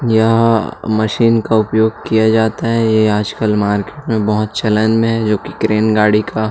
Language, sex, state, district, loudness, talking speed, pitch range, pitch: Hindi, male, Chhattisgarh, Jashpur, -14 LUFS, 205 wpm, 105-115 Hz, 110 Hz